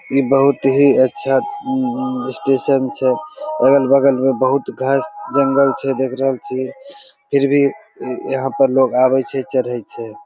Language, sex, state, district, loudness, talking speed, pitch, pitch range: Maithili, male, Bihar, Begusarai, -16 LUFS, 140 wpm, 135 Hz, 130-140 Hz